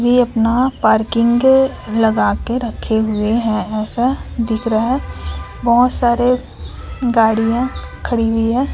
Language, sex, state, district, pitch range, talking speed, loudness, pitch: Hindi, female, Chhattisgarh, Raipur, 220-245 Hz, 115 wpm, -16 LUFS, 230 Hz